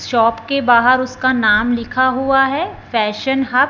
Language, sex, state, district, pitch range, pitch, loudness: Hindi, male, Punjab, Fazilka, 230-265 Hz, 255 Hz, -15 LUFS